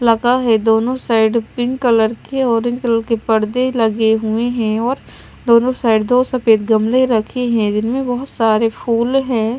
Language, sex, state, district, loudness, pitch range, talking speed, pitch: Hindi, female, Bihar, Kaimur, -15 LUFS, 225-250 Hz, 175 wpm, 230 Hz